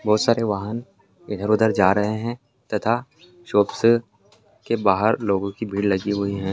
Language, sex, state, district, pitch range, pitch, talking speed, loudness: Hindi, male, Chhattisgarh, Raigarh, 100-115 Hz, 105 Hz, 155 wpm, -22 LUFS